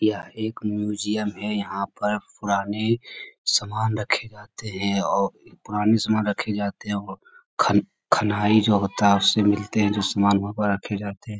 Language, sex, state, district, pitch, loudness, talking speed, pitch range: Hindi, male, Bihar, Jamui, 105 Hz, -23 LUFS, 135 wpm, 100-105 Hz